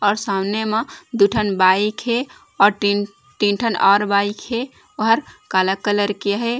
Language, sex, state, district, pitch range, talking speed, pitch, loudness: Chhattisgarhi, female, Chhattisgarh, Raigarh, 200-225 Hz, 175 wpm, 205 Hz, -19 LUFS